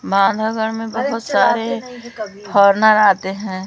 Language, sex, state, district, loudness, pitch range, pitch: Hindi, female, Madhya Pradesh, Umaria, -16 LUFS, 195-225 Hz, 215 Hz